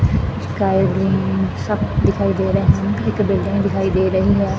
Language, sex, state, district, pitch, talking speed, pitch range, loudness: Punjabi, female, Punjab, Fazilka, 100 Hz, 170 wpm, 95-100 Hz, -18 LUFS